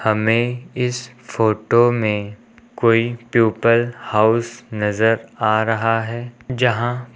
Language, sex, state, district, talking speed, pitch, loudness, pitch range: Hindi, male, Uttar Pradesh, Lucknow, 100 wpm, 115 Hz, -18 LUFS, 110-120 Hz